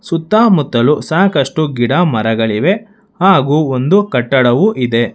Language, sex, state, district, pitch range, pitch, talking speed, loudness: Kannada, male, Karnataka, Bangalore, 120-195 Hz, 150 Hz, 95 wpm, -12 LUFS